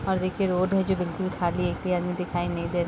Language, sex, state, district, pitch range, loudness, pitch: Hindi, female, Bihar, Bhagalpur, 175-185 Hz, -27 LUFS, 180 Hz